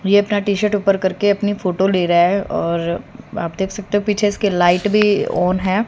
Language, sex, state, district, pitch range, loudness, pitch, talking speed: Hindi, female, Haryana, Rohtak, 180-205 Hz, -17 LUFS, 200 Hz, 215 wpm